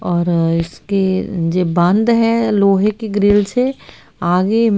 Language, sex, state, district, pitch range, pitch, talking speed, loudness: Hindi, female, Haryana, Rohtak, 175-220 Hz, 200 Hz, 125 wpm, -15 LUFS